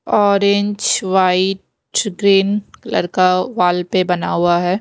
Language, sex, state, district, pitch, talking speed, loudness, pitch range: Hindi, female, Bihar, West Champaran, 190 Hz, 125 wpm, -16 LUFS, 180-200 Hz